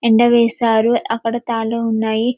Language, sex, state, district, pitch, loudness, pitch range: Telugu, female, Telangana, Karimnagar, 230 Hz, -16 LUFS, 225-235 Hz